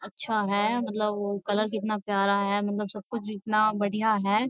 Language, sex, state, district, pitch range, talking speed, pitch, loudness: Hindi, female, Uttar Pradesh, Jyotiba Phule Nagar, 205-215 Hz, 175 wpm, 210 Hz, -27 LUFS